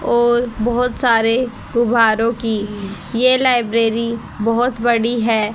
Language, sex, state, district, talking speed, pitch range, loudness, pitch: Hindi, female, Haryana, Jhajjar, 110 wpm, 225-240 Hz, -16 LUFS, 230 Hz